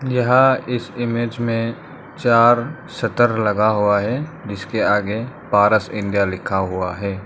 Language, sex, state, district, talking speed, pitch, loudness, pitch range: Hindi, male, Arunachal Pradesh, Lower Dibang Valley, 130 wpm, 115 Hz, -18 LUFS, 105-125 Hz